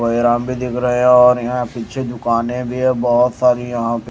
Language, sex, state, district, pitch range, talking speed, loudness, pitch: Hindi, male, Odisha, Malkangiri, 120-125 Hz, 235 wpm, -16 LUFS, 125 Hz